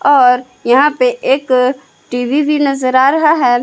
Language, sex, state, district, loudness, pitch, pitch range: Hindi, female, Jharkhand, Palamu, -12 LUFS, 260 Hz, 250-290 Hz